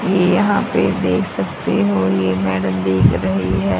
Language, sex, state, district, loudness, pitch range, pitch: Hindi, female, Haryana, Charkhi Dadri, -17 LUFS, 95-140 Hz, 95 Hz